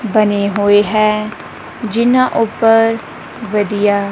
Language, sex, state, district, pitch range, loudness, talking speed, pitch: Punjabi, female, Punjab, Kapurthala, 205-225 Hz, -14 LUFS, 85 wpm, 215 Hz